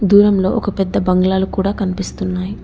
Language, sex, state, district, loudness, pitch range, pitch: Telugu, female, Telangana, Hyderabad, -16 LUFS, 190-200 Hz, 190 Hz